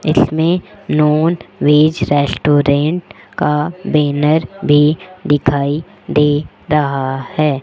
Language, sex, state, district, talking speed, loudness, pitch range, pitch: Hindi, female, Rajasthan, Jaipur, 85 wpm, -15 LUFS, 145-155 Hz, 150 Hz